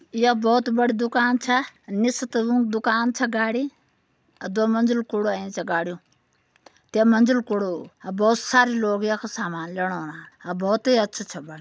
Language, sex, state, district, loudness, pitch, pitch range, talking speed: Garhwali, female, Uttarakhand, Uttarkashi, -22 LUFS, 225 Hz, 195-240 Hz, 175 wpm